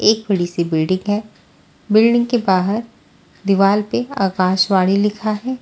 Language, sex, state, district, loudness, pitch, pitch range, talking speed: Hindi, female, Bihar, Kaimur, -17 LUFS, 205 Hz, 190-215 Hz, 140 wpm